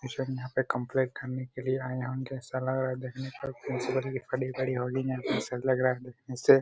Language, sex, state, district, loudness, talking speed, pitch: Hindi, male, Jharkhand, Jamtara, -32 LUFS, 255 wpm, 130 Hz